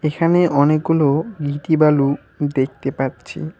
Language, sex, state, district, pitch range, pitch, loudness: Bengali, male, West Bengal, Alipurduar, 140-160 Hz, 145 Hz, -18 LUFS